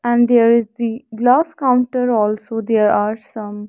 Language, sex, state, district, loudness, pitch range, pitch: English, female, Haryana, Rohtak, -16 LUFS, 215-250 Hz, 230 Hz